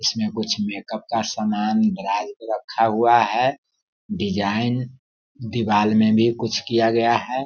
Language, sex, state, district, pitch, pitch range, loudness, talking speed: Hindi, male, Bihar, Sitamarhi, 110 Hz, 105-115 Hz, -21 LUFS, 145 wpm